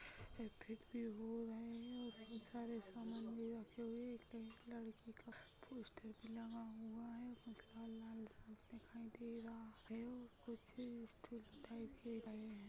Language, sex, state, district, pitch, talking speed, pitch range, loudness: Hindi, female, Maharashtra, Pune, 230 Hz, 135 wpm, 225-235 Hz, -53 LUFS